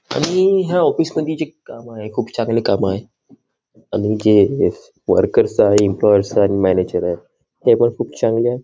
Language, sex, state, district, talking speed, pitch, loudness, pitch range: Marathi, male, Maharashtra, Nagpur, 165 wpm, 110 Hz, -17 LUFS, 100-125 Hz